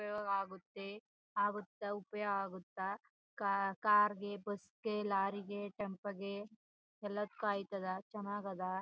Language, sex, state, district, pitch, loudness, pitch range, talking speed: Kannada, female, Karnataka, Chamarajanagar, 205 Hz, -40 LUFS, 195-210 Hz, 120 wpm